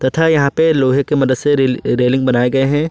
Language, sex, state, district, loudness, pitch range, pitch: Hindi, male, Jharkhand, Ranchi, -14 LUFS, 130-145 Hz, 135 Hz